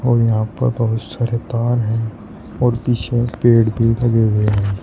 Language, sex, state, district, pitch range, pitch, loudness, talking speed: Hindi, male, Uttar Pradesh, Shamli, 110-120 Hz, 115 Hz, -17 LUFS, 175 wpm